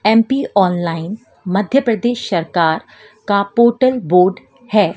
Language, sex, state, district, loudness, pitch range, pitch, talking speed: Hindi, female, Madhya Pradesh, Dhar, -16 LUFS, 180-235 Hz, 210 Hz, 110 wpm